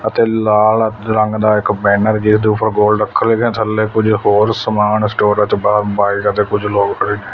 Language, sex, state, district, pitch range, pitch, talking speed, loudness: Punjabi, male, Punjab, Fazilka, 105-110 Hz, 105 Hz, 180 wpm, -14 LUFS